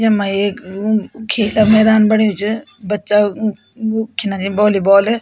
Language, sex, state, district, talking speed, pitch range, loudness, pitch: Garhwali, female, Uttarakhand, Tehri Garhwal, 160 wpm, 205-220 Hz, -15 LUFS, 215 Hz